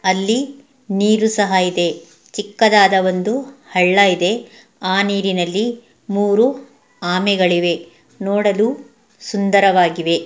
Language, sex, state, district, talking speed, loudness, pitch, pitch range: Kannada, female, Karnataka, Mysore, 80 wpm, -16 LUFS, 200 Hz, 185-225 Hz